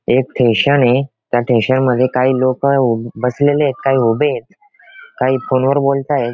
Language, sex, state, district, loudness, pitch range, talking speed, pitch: Marathi, male, Maharashtra, Pune, -15 LUFS, 125-140 Hz, 170 wpm, 130 Hz